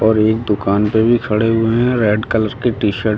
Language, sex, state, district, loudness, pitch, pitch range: Hindi, male, Delhi, New Delhi, -15 LUFS, 110 Hz, 105-115 Hz